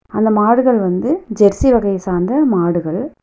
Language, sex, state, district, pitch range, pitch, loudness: Tamil, female, Tamil Nadu, Nilgiris, 180-245 Hz, 210 Hz, -15 LUFS